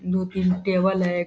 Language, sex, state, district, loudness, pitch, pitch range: Hindi, male, Bihar, Saharsa, -23 LUFS, 185 Hz, 180-190 Hz